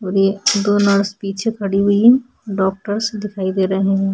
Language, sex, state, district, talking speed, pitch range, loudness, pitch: Hindi, female, Bihar, Vaishali, 190 wpm, 195-205 Hz, -17 LUFS, 200 Hz